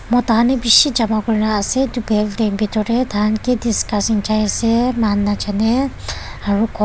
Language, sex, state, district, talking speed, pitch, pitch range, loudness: Nagamese, female, Nagaland, Dimapur, 165 wpm, 220 Hz, 210-240 Hz, -17 LUFS